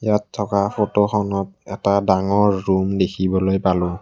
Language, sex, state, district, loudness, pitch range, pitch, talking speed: Assamese, male, Assam, Kamrup Metropolitan, -19 LUFS, 95-105 Hz, 100 Hz, 135 wpm